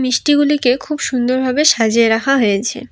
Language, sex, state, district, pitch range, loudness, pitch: Bengali, female, West Bengal, Alipurduar, 235-275 Hz, -14 LUFS, 255 Hz